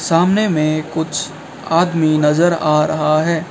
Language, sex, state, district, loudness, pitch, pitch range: Hindi, male, Assam, Kamrup Metropolitan, -16 LUFS, 160 Hz, 155-170 Hz